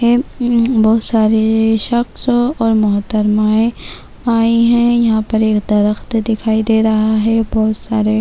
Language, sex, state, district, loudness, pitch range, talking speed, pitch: Urdu, female, Bihar, Kishanganj, -14 LUFS, 215-235 Hz, 125 wpm, 220 Hz